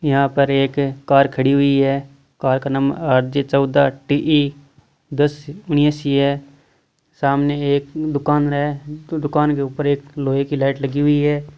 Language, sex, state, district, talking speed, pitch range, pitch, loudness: Hindi, male, Rajasthan, Churu, 165 wpm, 140-145 Hz, 140 Hz, -18 LUFS